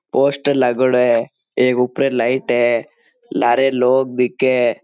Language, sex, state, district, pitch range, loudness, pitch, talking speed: Marwari, male, Rajasthan, Nagaur, 125-135 Hz, -17 LUFS, 125 Hz, 135 wpm